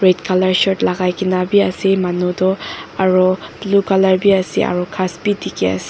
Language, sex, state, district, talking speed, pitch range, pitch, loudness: Nagamese, female, Nagaland, Dimapur, 205 wpm, 180-195 Hz, 185 Hz, -16 LUFS